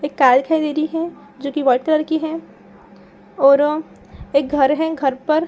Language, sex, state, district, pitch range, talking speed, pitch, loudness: Hindi, female, Bihar, Saran, 275-315 Hz, 210 wpm, 295 Hz, -18 LUFS